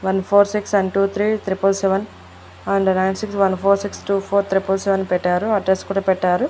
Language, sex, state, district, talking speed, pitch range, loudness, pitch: Telugu, female, Andhra Pradesh, Annamaya, 210 wpm, 190-200 Hz, -19 LUFS, 195 Hz